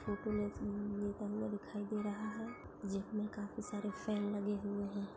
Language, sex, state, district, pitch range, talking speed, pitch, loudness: Hindi, female, Maharashtra, Pune, 205-210 Hz, 150 wpm, 205 Hz, -41 LUFS